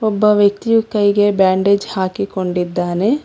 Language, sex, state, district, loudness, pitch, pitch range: Kannada, female, Karnataka, Bangalore, -15 LUFS, 205 Hz, 190-210 Hz